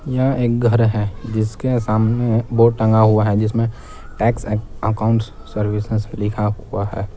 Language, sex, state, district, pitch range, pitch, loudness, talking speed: Hindi, male, Jharkhand, Palamu, 105-115 Hz, 110 Hz, -18 LUFS, 140 wpm